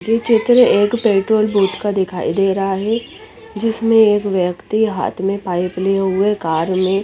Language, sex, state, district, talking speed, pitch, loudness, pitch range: Hindi, female, Chandigarh, Chandigarh, 170 wpm, 200 Hz, -16 LUFS, 190-225 Hz